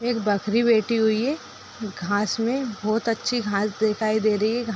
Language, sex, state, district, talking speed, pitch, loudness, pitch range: Hindi, female, Bihar, Darbhanga, 200 wpm, 220 Hz, -23 LUFS, 215-235 Hz